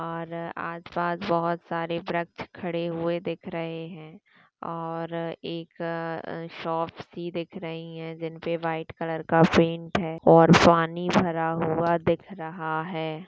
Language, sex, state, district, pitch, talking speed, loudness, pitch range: Hindi, female, Maharashtra, Chandrapur, 165 Hz, 140 wpm, -26 LUFS, 165-170 Hz